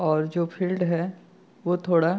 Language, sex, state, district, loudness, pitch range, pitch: Hindi, male, Jharkhand, Sahebganj, -26 LUFS, 170-180 Hz, 175 Hz